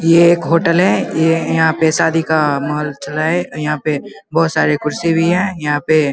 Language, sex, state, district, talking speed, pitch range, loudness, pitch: Hindi, male, Bihar, Vaishali, 215 wpm, 150-165 Hz, -15 LUFS, 160 Hz